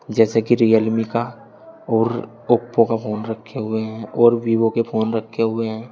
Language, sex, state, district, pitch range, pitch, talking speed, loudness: Hindi, male, Uttar Pradesh, Saharanpur, 110-115 Hz, 115 Hz, 180 wpm, -19 LUFS